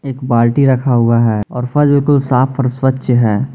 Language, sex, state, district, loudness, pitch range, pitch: Hindi, male, Jharkhand, Ranchi, -13 LUFS, 120-135 Hz, 130 Hz